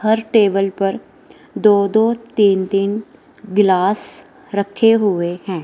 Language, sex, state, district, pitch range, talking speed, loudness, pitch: Hindi, female, Himachal Pradesh, Shimla, 195-220 Hz, 115 wpm, -16 LUFS, 200 Hz